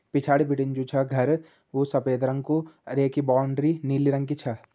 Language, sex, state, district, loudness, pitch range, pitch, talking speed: Hindi, male, Uttarakhand, Uttarkashi, -25 LUFS, 135-145 Hz, 140 Hz, 215 wpm